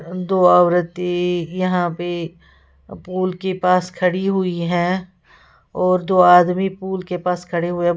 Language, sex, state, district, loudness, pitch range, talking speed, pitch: Hindi, female, Uttar Pradesh, Lalitpur, -18 LUFS, 175-185 Hz, 145 wpm, 180 Hz